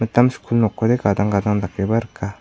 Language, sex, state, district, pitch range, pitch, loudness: Garo, male, Meghalaya, South Garo Hills, 100-115 Hz, 110 Hz, -19 LUFS